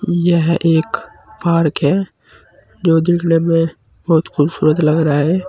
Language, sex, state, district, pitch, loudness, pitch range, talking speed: Hindi, male, Uttar Pradesh, Saharanpur, 165 Hz, -15 LUFS, 160-175 Hz, 130 wpm